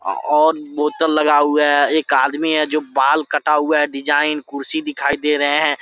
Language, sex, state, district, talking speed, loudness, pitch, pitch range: Hindi, male, Jharkhand, Sahebganj, 195 wpm, -17 LUFS, 150 Hz, 145-155 Hz